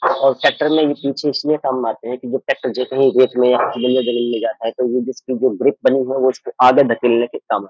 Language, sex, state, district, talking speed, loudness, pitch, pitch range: Hindi, male, Uttar Pradesh, Jyotiba Phule Nagar, 265 wpm, -17 LUFS, 130 Hz, 125-135 Hz